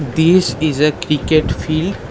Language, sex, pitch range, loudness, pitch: English, male, 150-160 Hz, -15 LUFS, 155 Hz